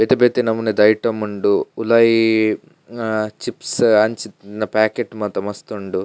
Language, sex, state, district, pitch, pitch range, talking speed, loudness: Tulu, male, Karnataka, Dakshina Kannada, 110 Hz, 105-115 Hz, 130 wpm, -18 LUFS